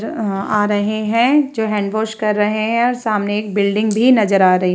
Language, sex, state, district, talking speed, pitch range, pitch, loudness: Hindi, female, Bihar, Vaishali, 240 wpm, 205-225 Hz, 215 Hz, -16 LUFS